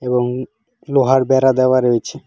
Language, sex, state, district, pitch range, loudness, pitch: Bengali, male, West Bengal, Alipurduar, 125-135 Hz, -15 LUFS, 130 Hz